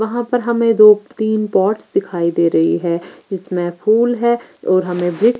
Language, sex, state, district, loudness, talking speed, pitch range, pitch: Hindi, female, Bihar, Patna, -16 LUFS, 165 wpm, 175-230 Hz, 210 Hz